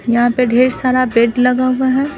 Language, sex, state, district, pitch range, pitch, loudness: Hindi, female, Bihar, Patna, 240-255 Hz, 255 Hz, -14 LUFS